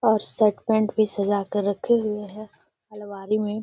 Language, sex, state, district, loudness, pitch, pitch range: Hindi, female, Bihar, Gaya, -23 LUFS, 210 Hz, 205-215 Hz